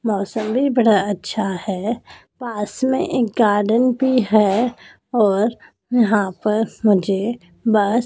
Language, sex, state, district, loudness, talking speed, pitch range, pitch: Hindi, female, Madhya Pradesh, Dhar, -19 LUFS, 120 wpm, 205-240 Hz, 220 Hz